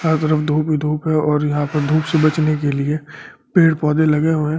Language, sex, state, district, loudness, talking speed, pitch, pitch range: Hindi, male, Delhi, New Delhi, -17 LUFS, 250 wpm, 155 Hz, 150-155 Hz